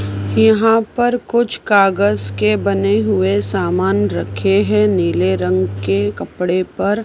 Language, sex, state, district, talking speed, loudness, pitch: Hindi, female, Maharashtra, Mumbai Suburban, 125 wpm, -16 LUFS, 175 Hz